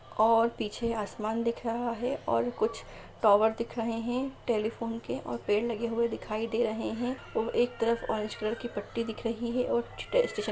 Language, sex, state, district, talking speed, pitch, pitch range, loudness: Hindi, female, Bihar, Saran, 195 wpm, 230 Hz, 220-235 Hz, -30 LUFS